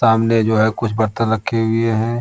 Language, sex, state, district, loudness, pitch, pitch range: Hindi, male, Bihar, Darbhanga, -17 LUFS, 115 Hz, 110-115 Hz